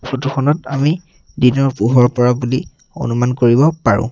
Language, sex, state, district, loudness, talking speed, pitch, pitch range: Assamese, male, Assam, Sonitpur, -15 LUFS, 145 wpm, 130 Hz, 120-140 Hz